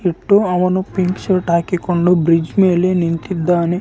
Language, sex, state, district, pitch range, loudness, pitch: Kannada, male, Karnataka, Raichur, 170-185 Hz, -16 LUFS, 180 Hz